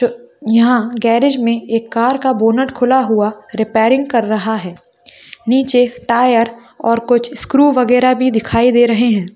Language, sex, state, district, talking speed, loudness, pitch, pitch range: Hindi, female, Bihar, Jamui, 155 wpm, -13 LUFS, 240 Hz, 230-250 Hz